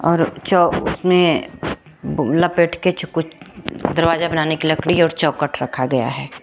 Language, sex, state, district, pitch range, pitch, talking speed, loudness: Hindi, female, Jharkhand, Palamu, 155-170 Hz, 165 Hz, 160 wpm, -18 LUFS